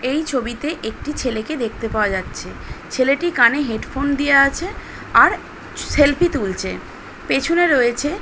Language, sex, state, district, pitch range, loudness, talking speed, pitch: Bengali, female, West Bengal, Kolkata, 235-300 Hz, -18 LUFS, 125 wpm, 275 Hz